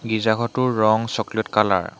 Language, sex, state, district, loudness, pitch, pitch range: Assamese, male, Assam, Hailakandi, -20 LUFS, 110 Hz, 110-115 Hz